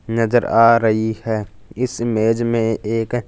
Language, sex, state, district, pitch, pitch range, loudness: Hindi, male, Punjab, Fazilka, 115 Hz, 110-115 Hz, -18 LUFS